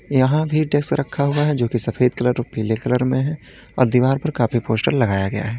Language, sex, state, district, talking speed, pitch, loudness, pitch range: Hindi, male, Uttar Pradesh, Lalitpur, 235 wpm, 125 Hz, -19 LUFS, 115-140 Hz